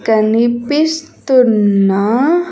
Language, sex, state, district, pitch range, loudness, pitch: Telugu, female, Andhra Pradesh, Sri Satya Sai, 215-295 Hz, -13 LUFS, 240 Hz